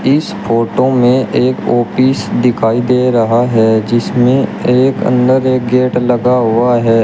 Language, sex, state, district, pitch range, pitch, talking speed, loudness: Hindi, male, Uttar Pradesh, Shamli, 115-130 Hz, 125 Hz, 145 wpm, -12 LUFS